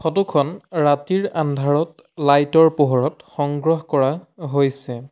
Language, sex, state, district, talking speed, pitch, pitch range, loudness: Assamese, male, Assam, Sonitpur, 115 wpm, 145 Hz, 140-160 Hz, -19 LUFS